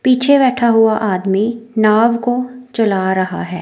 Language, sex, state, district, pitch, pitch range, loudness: Hindi, female, Himachal Pradesh, Shimla, 225 Hz, 200-250 Hz, -14 LUFS